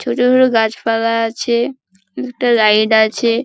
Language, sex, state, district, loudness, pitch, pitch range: Bengali, female, West Bengal, Paschim Medinipur, -14 LUFS, 230 Hz, 220-245 Hz